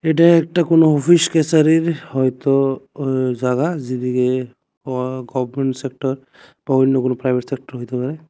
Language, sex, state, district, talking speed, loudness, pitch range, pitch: Bengali, male, Tripura, West Tripura, 135 wpm, -18 LUFS, 130-155 Hz, 135 Hz